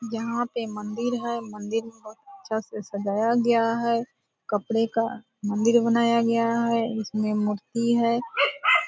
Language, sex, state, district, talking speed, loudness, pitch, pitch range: Hindi, female, Bihar, Purnia, 140 wpm, -25 LUFS, 230 Hz, 215-235 Hz